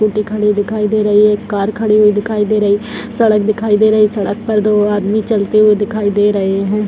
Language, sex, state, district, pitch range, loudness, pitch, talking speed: Hindi, female, Bihar, Purnia, 205-215 Hz, -13 LUFS, 210 Hz, 210 wpm